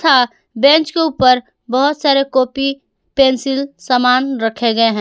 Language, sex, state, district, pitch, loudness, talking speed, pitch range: Hindi, female, Jharkhand, Palamu, 265 Hz, -14 LUFS, 145 wpm, 250-275 Hz